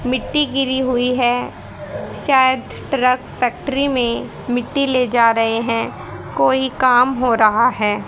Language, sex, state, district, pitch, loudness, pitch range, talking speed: Hindi, female, Haryana, Charkhi Dadri, 250 Hz, -17 LUFS, 235-265 Hz, 135 wpm